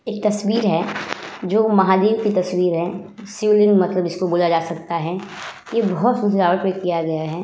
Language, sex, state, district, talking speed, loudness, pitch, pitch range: Hindi, female, Uttar Pradesh, Budaun, 180 wpm, -19 LUFS, 190 Hz, 175-210 Hz